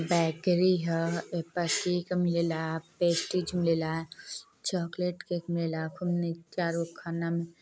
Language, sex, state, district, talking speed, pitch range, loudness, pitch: Bhojpuri, female, Uttar Pradesh, Deoria, 120 wpm, 165-175 Hz, -30 LUFS, 170 Hz